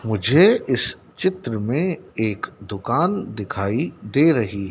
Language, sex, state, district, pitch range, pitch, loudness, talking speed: Hindi, male, Madhya Pradesh, Dhar, 105-170 Hz, 115 Hz, -21 LUFS, 115 wpm